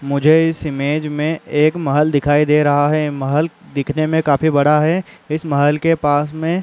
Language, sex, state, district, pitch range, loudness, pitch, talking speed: Hindi, male, Uttar Pradesh, Muzaffarnagar, 145-160 Hz, -16 LUFS, 150 Hz, 200 wpm